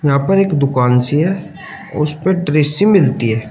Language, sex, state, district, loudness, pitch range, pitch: Hindi, male, Uttar Pradesh, Shamli, -14 LUFS, 140-185 Hz, 150 Hz